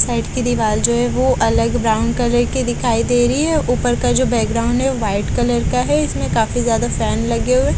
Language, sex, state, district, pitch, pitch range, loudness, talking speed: Hindi, female, Haryana, Jhajjar, 240 Hz, 215-245 Hz, -17 LUFS, 230 wpm